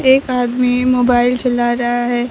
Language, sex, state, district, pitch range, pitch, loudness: Hindi, female, Bihar, Kaimur, 240-250 Hz, 245 Hz, -15 LUFS